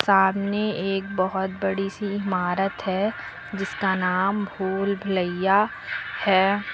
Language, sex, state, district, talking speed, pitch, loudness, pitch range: Hindi, female, Uttar Pradesh, Lucknow, 100 wpm, 195 Hz, -24 LUFS, 190-200 Hz